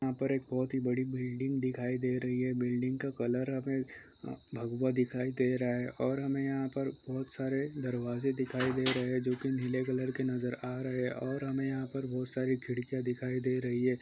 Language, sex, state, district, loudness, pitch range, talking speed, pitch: Hindi, male, Chhattisgarh, Sukma, -34 LUFS, 125-130 Hz, 220 wpm, 130 Hz